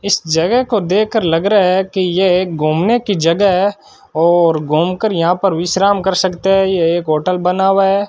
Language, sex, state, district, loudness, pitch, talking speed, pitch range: Hindi, male, Rajasthan, Bikaner, -14 LUFS, 185 Hz, 220 wpm, 170-200 Hz